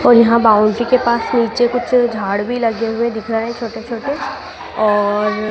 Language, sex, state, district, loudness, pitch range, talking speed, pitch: Hindi, female, Madhya Pradesh, Dhar, -16 LUFS, 220-235 Hz, 185 wpm, 230 Hz